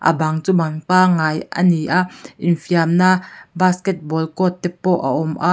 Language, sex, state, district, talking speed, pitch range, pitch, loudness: Mizo, female, Mizoram, Aizawl, 175 wpm, 160-185 Hz, 175 Hz, -18 LUFS